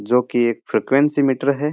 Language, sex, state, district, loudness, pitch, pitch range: Rajasthani, male, Rajasthan, Churu, -18 LUFS, 135 Hz, 120-140 Hz